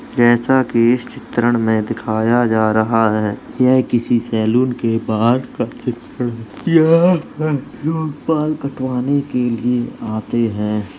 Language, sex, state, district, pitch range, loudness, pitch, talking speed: Hindi, male, Uttar Pradesh, Jalaun, 115-130 Hz, -17 LUFS, 120 Hz, 130 wpm